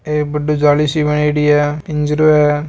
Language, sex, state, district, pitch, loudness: Marwari, male, Rajasthan, Nagaur, 150 Hz, -14 LUFS